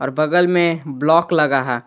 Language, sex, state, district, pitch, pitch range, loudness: Hindi, male, Jharkhand, Garhwa, 155 Hz, 140-170 Hz, -16 LUFS